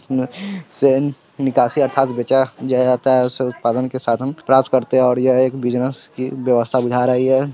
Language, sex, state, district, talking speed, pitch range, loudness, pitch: Hindi, male, Bihar, Sitamarhi, 190 wpm, 125-135 Hz, -17 LUFS, 130 Hz